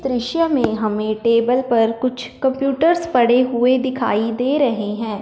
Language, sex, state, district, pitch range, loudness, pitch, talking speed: Hindi, male, Punjab, Fazilka, 225-265 Hz, -18 LUFS, 245 Hz, 150 wpm